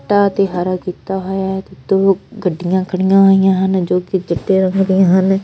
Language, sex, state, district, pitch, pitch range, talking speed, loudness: Punjabi, female, Punjab, Fazilka, 190 Hz, 185-195 Hz, 175 wpm, -15 LUFS